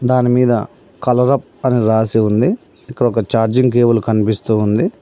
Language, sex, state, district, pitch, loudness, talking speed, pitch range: Telugu, male, Telangana, Mahabubabad, 120 Hz, -15 LUFS, 155 wpm, 110-125 Hz